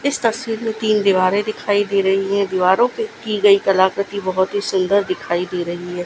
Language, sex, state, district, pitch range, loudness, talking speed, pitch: Hindi, female, Gujarat, Gandhinagar, 185-215 Hz, -18 LUFS, 215 wpm, 200 Hz